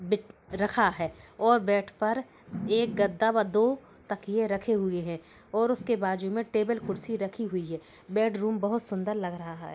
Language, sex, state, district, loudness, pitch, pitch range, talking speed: Hindi, female, Uttar Pradesh, Hamirpur, -29 LUFS, 210 Hz, 195-225 Hz, 180 wpm